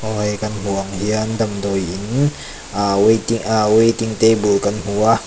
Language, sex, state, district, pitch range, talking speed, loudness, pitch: Mizo, male, Mizoram, Aizawl, 100-110 Hz, 170 wpm, -18 LUFS, 105 Hz